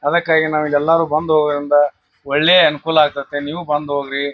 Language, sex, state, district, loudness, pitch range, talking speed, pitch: Kannada, male, Karnataka, Bijapur, -16 LUFS, 145-155 Hz, 180 wpm, 150 Hz